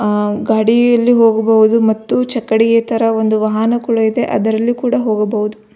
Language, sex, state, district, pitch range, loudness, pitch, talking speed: Kannada, female, Karnataka, Belgaum, 215-230 Hz, -13 LUFS, 225 Hz, 135 wpm